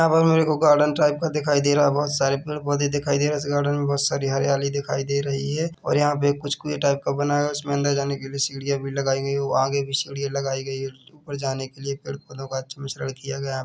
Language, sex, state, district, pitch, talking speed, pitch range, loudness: Hindi, male, Chhattisgarh, Bilaspur, 140 Hz, 290 wpm, 135-145 Hz, -23 LUFS